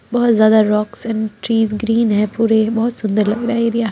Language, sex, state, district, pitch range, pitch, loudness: Hindi, female, Bihar, Muzaffarpur, 215-230 Hz, 225 Hz, -16 LUFS